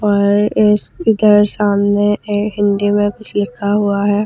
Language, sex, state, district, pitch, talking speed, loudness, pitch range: Hindi, female, Delhi, New Delhi, 205 Hz, 170 wpm, -14 LUFS, 205-210 Hz